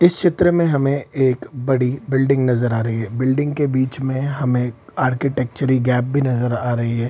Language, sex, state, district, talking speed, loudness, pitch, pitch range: Hindi, male, Bihar, Samastipur, 195 wpm, -19 LUFS, 130 Hz, 125-140 Hz